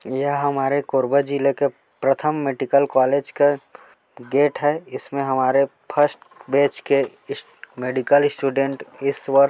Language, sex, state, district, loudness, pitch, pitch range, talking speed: Hindi, male, Chhattisgarh, Korba, -21 LUFS, 140 Hz, 135-145 Hz, 140 wpm